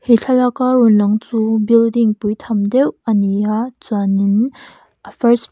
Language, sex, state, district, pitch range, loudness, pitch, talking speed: Mizo, female, Mizoram, Aizawl, 210-250 Hz, -15 LUFS, 225 Hz, 165 wpm